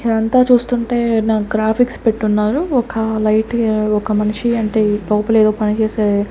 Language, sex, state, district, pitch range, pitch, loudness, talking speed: Telugu, female, Andhra Pradesh, Sri Satya Sai, 215-235 Hz, 220 Hz, -16 LUFS, 145 wpm